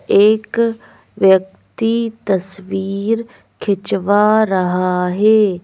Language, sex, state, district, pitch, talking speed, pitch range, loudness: Hindi, female, Madhya Pradesh, Bhopal, 200 Hz, 65 wpm, 190-220 Hz, -16 LUFS